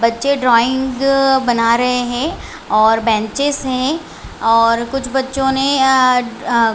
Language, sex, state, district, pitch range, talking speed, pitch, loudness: Hindi, female, Chhattisgarh, Raigarh, 230-270 Hz, 125 wpm, 255 Hz, -15 LUFS